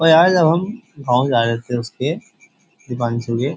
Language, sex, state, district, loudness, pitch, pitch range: Hindi, male, Uttar Pradesh, Jyotiba Phule Nagar, -18 LUFS, 130 Hz, 120-165 Hz